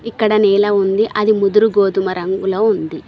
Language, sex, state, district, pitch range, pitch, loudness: Telugu, female, Telangana, Mahabubabad, 195-215 Hz, 205 Hz, -15 LUFS